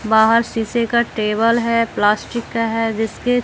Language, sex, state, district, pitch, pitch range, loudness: Hindi, female, Bihar, West Champaran, 230 Hz, 220-235 Hz, -17 LUFS